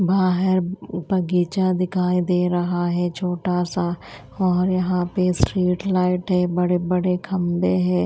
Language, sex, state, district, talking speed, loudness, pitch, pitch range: Hindi, female, Odisha, Malkangiri, 135 wpm, -21 LUFS, 180 Hz, 175-185 Hz